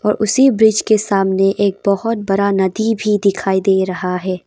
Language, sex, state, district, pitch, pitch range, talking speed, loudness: Hindi, female, Arunachal Pradesh, Papum Pare, 200 Hz, 190-215 Hz, 175 wpm, -15 LUFS